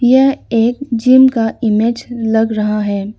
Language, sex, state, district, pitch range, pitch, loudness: Hindi, female, Arunachal Pradesh, Lower Dibang Valley, 220-250 Hz, 230 Hz, -13 LUFS